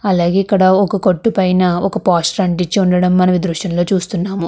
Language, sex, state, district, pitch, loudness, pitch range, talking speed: Telugu, female, Andhra Pradesh, Krishna, 185 Hz, -14 LUFS, 180-195 Hz, 160 wpm